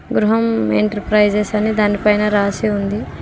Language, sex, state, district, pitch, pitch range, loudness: Telugu, female, Telangana, Mahabubabad, 210 Hz, 205-215 Hz, -16 LUFS